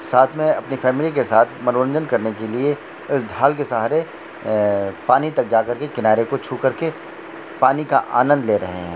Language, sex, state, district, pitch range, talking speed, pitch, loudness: Hindi, male, Jharkhand, Jamtara, 110-145 Hz, 190 wpm, 130 Hz, -19 LUFS